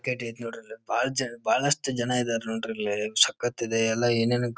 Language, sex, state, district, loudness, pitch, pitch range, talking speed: Kannada, male, Karnataka, Dharwad, -26 LUFS, 115 Hz, 110-120 Hz, 155 wpm